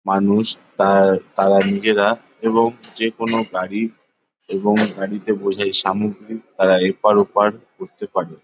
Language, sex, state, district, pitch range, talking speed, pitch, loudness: Bengali, male, West Bengal, Paschim Medinipur, 95-115 Hz, 115 wpm, 105 Hz, -18 LUFS